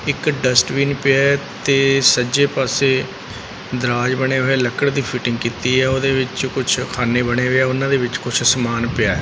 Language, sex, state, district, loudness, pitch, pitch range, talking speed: Punjabi, male, Punjab, Fazilka, -17 LUFS, 130 Hz, 125-135 Hz, 170 wpm